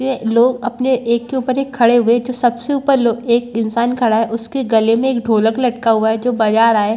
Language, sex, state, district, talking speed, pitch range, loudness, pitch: Hindi, female, Chhattisgarh, Balrampur, 250 wpm, 225-255 Hz, -15 LUFS, 235 Hz